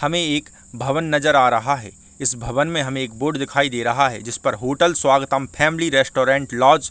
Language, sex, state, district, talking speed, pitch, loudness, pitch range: Hindi, male, Chhattisgarh, Rajnandgaon, 210 wpm, 135 Hz, -19 LUFS, 125-145 Hz